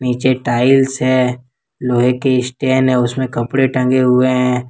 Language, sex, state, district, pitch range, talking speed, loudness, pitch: Hindi, male, Jharkhand, Ranchi, 125-130 Hz, 155 wpm, -15 LUFS, 130 Hz